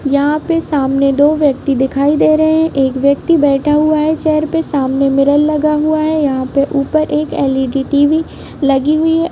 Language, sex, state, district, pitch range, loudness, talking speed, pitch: Hindi, female, Bihar, Jahanabad, 275-310 Hz, -13 LUFS, 185 wpm, 290 Hz